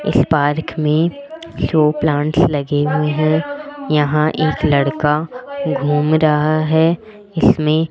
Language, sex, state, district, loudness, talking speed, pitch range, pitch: Hindi, female, Rajasthan, Jaipur, -16 LUFS, 120 wpm, 150-165 Hz, 155 Hz